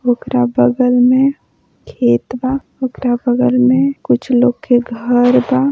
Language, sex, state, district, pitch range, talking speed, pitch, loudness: Bhojpuri, female, Uttar Pradesh, Gorakhpur, 245-260 Hz, 125 wpm, 250 Hz, -14 LUFS